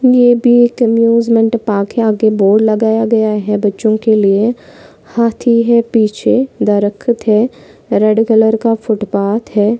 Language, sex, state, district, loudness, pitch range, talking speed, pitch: Hindi, female, Maharashtra, Pune, -12 LUFS, 210-235 Hz, 145 wpm, 220 Hz